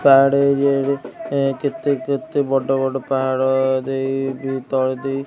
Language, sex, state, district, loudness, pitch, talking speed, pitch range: Odia, male, Odisha, Khordha, -19 LUFS, 135 Hz, 150 wpm, 135-140 Hz